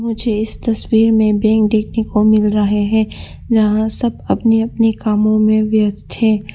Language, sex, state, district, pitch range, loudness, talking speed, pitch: Hindi, female, Arunachal Pradesh, Papum Pare, 215-225 Hz, -15 LUFS, 165 wpm, 220 Hz